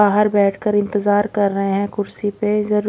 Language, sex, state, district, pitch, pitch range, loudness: Hindi, female, Odisha, Khordha, 205 Hz, 205-210 Hz, -18 LUFS